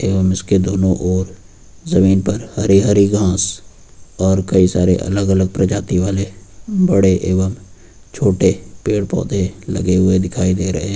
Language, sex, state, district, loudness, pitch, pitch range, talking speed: Hindi, male, Uttar Pradesh, Lucknow, -16 LUFS, 95 Hz, 95-100 Hz, 140 wpm